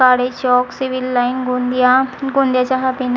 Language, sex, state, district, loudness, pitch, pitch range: Marathi, female, Maharashtra, Gondia, -16 LUFS, 255 Hz, 250-260 Hz